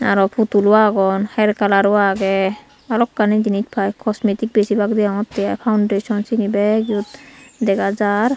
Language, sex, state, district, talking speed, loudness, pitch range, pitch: Chakma, female, Tripura, Unakoti, 145 wpm, -17 LUFS, 200-220 Hz, 210 Hz